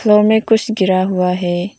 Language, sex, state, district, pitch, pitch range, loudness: Hindi, female, Arunachal Pradesh, Lower Dibang Valley, 195 Hz, 180-220 Hz, -14 LUFS